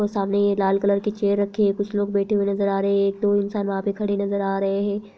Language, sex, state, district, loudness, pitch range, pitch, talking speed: Hindi, female, Bihar, Madhepura, -22 LUFS, 200-205 Hz, 200 Hz, 310 wpm